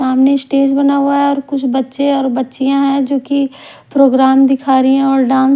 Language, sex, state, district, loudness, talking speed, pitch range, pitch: Hindi, female, Odisha, Khordha, -13 LUFS, 205 wpm, 265-280 Hz, 275 Hz